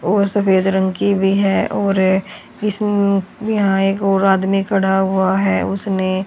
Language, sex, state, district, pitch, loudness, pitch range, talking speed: Hindi, female, Haryana, Charkhi Dadri, 195 Hz, -16 LUFS, 190-200 Hz, 155 wpm